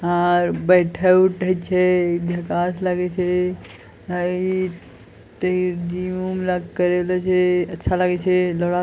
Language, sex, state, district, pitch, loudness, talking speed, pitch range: Maithili, male, Bihar, Bhagalpur, 180 Hz, -20 LUFS, 120 wpm, 175-180 Hz